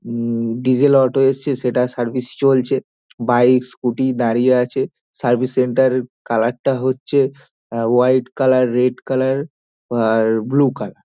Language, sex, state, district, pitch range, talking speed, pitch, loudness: Bengali, male, West Bengal, Dakshin Dinajpur, 120-130 Hz, 130 wpm, 125 Hz, -17 LUFS